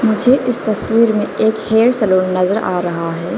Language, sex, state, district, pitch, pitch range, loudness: Hindi, female, Arunachal Pradesh, Lower Dibang Valley, 215 Hz, 185-230 Hz, -15 LUFS